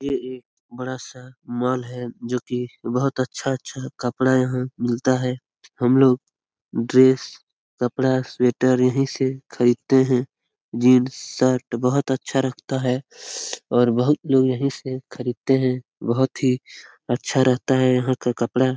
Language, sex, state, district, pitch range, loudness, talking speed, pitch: Hindi, male, Bihar, Lakhisarai, 125-130 Hz, -21 LUFS, 145 wpm, 130 Hz